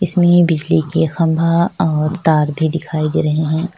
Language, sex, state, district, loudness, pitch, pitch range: Hindi, female, Chhattisgarh, Sukma, -15 LUFS, 160 Hz, 155-175 Hz